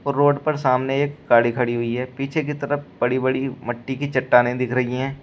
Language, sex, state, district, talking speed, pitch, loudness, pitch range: Hindi, male, Uttar Pradesh, Shamli, 230 wpm, 130 Hz, -21 LUFS, 125-140 Hz